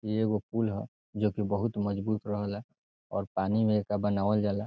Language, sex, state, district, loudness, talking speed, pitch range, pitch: Bhojpuri, male, Bihar, Saran, -31 LUFS, 180 wpm, 100-110 Hz, 105 Hz